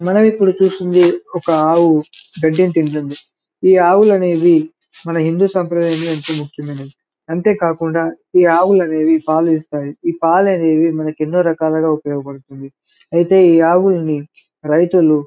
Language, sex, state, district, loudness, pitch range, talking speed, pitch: Telugu, male, Telangana, Karimnagar, -14 LUFS, 155-180 Hz, 125 wpm, 165 Hz